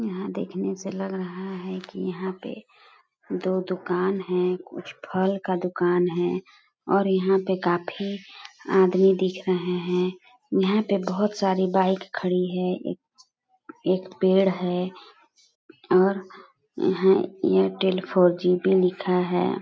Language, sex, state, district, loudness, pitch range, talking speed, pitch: Hindi, female, Chhattisgarh, Balrampur, -24 LUFS, 180-195 Hz, 135 wpm, 185 Hz